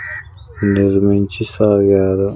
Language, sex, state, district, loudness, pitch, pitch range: Telugu, male, Andhra Pradesh, Sri Satya Sai, -14 LUFS, 100 Hz, 95-100 Hz